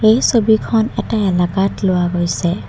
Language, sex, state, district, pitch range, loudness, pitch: Assamese, female, Assam, Kamrup Metropolitan, 175-220 Hz, -16 LUFS, 195 Hz